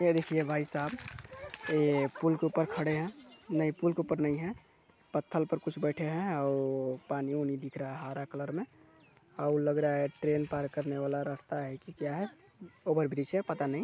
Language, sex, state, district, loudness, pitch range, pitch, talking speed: Hindi, male, Chhattisgarh, Balrampur, -33 LUFS, 140-160 Hz, 150 Hz, 200 wpm